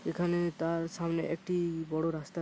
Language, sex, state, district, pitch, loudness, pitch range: Bengali, male, West Bengal, Paschim Medinipur, 165 Hz, -33 LUFS, 165-175 Hz